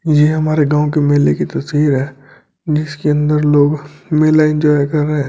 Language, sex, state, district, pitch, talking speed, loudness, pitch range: Hindi, male, Delhi, New Delhi, 150 Hz, 180 wpm, -14 LUFS, 145-155 Hz